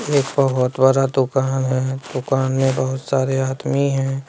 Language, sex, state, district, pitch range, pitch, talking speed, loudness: Hindi, male, Bihar, West Champaran, 130-135 Hz, 135 Hz, 155 wpm, -19 LUFS